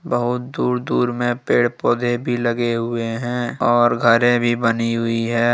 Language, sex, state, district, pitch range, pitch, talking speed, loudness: Hindi, male, Jharkhand, Deoghar, 115-120 Hz, 120 Hz, 175 wpm, -19 LUFS